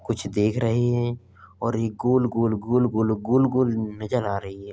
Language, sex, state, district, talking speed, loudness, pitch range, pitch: Hindi, male, Uttar Pradesh, Jalaun, 165 wpm, -24 LUFS, 105-120 Hz, 115 Hz